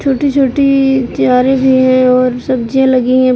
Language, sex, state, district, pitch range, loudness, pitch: Hindi, female, Uttar Pradesh, Deoria, 255-270 Hz, -11 LUFS, 260 Hz